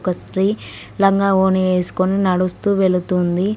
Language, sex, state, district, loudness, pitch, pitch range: Telugu, female, Telangana, Mahabubabad, -17 LUFS, 190 Hz, 180-195 Hz